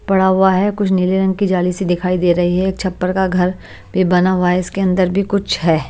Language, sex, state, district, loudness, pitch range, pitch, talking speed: Hindi, female, Haryana, Jhajjar, -16 LUFS, 180-190 Hz, 185 Hz, 265 wpm